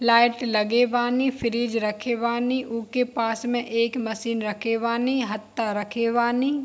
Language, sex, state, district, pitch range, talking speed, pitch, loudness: Hindi, female, Bihar, Darbhanga, 230-245 Hz, 135 wpm, 235 Hz, -24 LUFS